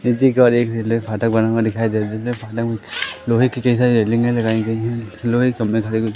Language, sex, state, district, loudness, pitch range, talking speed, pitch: Hindi, male, Madhya Pradesh, Katni, -18 LUFS, 110-120 Hz, 145 wpm, 115 Hz